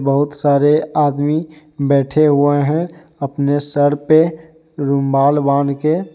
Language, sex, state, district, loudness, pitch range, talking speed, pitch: Hindi, male, Jharkhand, Deoghar, -15 LUFS, 140-155 Hz, 105 wpm, 145 Hz